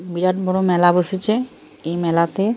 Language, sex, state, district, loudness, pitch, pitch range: Bengali, male, Jharkhand, Jamtara, -19 LUFS, 180 Hz, 175-190 Hz